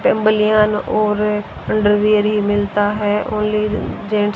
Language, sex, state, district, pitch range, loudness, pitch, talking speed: Hindi, female, Haryana, Rohtak, 210-215 Hz, -17 LUFS, 210 Hz, 110 wpm